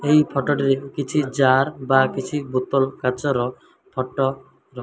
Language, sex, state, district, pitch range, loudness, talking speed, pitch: Odia, male, Odisha, Malkangiri, 130-145 Hz, -21 LUFS, 150 wpm, 135 Hz